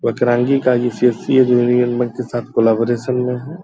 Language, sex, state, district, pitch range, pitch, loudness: Hindi, male, Bihar, Purnia, 120-125 Hz, 125 Hz, -16 LUFS